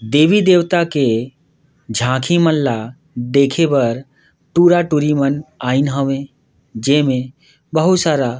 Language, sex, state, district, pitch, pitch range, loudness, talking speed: Surgujia, male, Chhattisgarh, Sarguja, 145 Hz, 130-160 Hz, -16 LUFS, 100 wpm